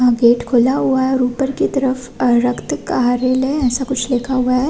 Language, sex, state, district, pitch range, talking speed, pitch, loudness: Hindi, female, Chhattisgarh, Rajnandgaon, 245-265 Hz, 205 wpm, 255 Hz, -16 LUFS